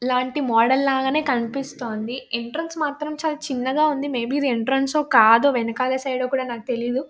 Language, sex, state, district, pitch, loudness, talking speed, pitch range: Telugu, female, Telangana, Nalgonda, 260 Hz, -21 LUFS, 150 wpm, 245-285 Hz